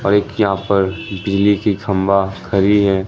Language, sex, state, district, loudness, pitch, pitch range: Hindi, male, Bihar, Katihar, -16 LUFS, 100 Hz, 95-100 Hz